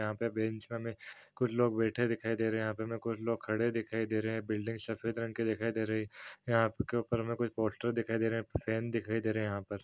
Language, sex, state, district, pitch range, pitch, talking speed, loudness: Hindi, male, Chhattisgarh, Rajnandgaon, 110-115 Hz, 115 Hz, 295 wpm, -35 LUFS